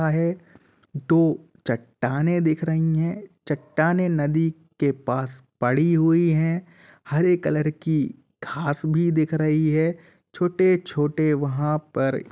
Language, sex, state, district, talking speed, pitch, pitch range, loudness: Hindi, male, Uttar Pradesh, Jalaun, 115 wpm, 160 Hz, 145-165 Hz, -23 LUFS